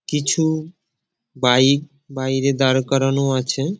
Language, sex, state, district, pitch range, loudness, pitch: Bengali, male, West Bengal, Dakshin Dinajpur, 130-150 Hz, -19 LUFS, 135 Hz